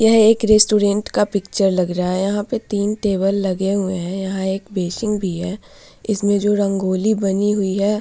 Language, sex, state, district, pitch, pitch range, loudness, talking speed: Hindi, female, Bihar, Vaishali, 200 Hz, 190-210 Hz, -18 LUFS, 200 wpm